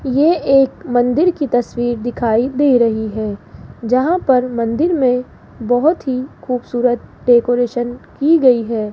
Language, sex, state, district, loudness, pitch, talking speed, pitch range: Hindi, female, Rajasthan, Jaipur, -16 LUFS, 245 Hz, 135 wpm, 240-275 Hz